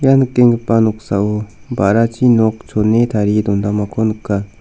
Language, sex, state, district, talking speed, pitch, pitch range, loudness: Garo, male, Meghalaya, South Garo Hills, 115 wpm, 110 Hz, 105-115 Hz, -15 LUFS